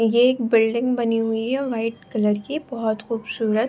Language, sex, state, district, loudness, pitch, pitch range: Hindi, female, Bihar, Saharsa, -22 LUFS, 230 Hz, 220-245 Hz